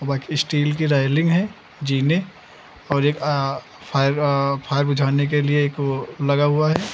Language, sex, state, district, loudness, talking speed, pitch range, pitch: Hindi, male, Uttar Pradesh, Lucknow, -20 LUFS, 175 wpm, 140-150 Hz, 145 Hz